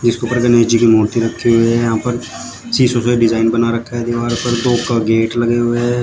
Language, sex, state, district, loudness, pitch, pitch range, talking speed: Hindi, male, Uttar Pradesh, Shamli, -14 LUFS, 120 Hz, 115-120 Hz, 260 wpm